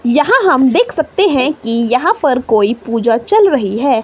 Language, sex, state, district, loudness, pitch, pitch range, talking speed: Hindi, female, Himachal Pradesh, Shimla, -12 LUFS, 260 Hz, 230-310 Hz, 190 wpm